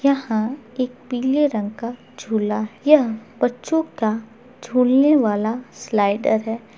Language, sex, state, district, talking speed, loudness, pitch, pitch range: Hindi, male, Bihar, Gopalganj, 115 wpm, -20 LUFS, 235 Hz, 220-260 Hz